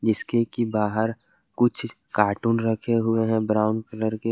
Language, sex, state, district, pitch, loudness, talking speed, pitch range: Hindi, male, Jharkhand, Garhwa, 110 Hz, -24 LUFS, 140 wpm, 110-115 Hz